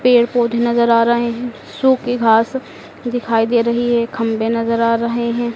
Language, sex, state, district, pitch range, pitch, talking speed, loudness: Hindi, female, Madhya Pradesh, Dhar, 230-240 Hz, 235 Hz, 185 wpm, -16 LUFS